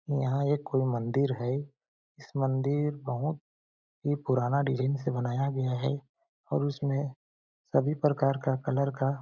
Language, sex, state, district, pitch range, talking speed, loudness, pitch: Hindi, male, Chhattisgarh, Balrampur, 130-140 Hz, 150 wpm, -30 LUFS, 135 Hz